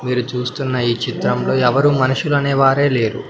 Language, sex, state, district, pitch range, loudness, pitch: Telugu, male, Andhra Pradesh, Sri Satya Sai, 125-140 Hz, -17 LUFS, 130 Hz